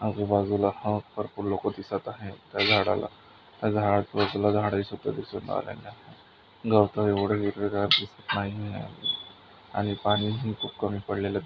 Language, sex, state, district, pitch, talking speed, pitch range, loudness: Marathi, male, Maharashtra, Nagpur, 100 Hz, 100 wpm, 100-105 Hz, -27 LUFS